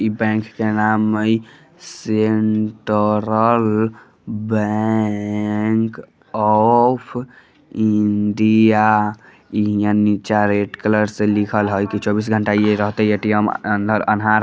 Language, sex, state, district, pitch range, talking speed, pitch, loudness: Bajjika, female, Bihar, Vaishali, 105-110 Hz, 100 wpm, 110 Hz, -17 LUFS